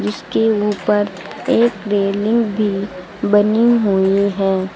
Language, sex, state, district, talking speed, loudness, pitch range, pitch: Hindi, female, Uttar Pradesh, Lucknow, 100 wpm, -16 LUFS, 195-215 Hz, 205 Hz